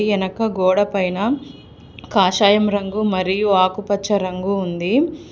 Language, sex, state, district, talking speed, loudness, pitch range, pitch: Telugu, female, Telangana, Hyderabad, 100 wpm, -18 LUFS, 190-210 Hz, 200 Hz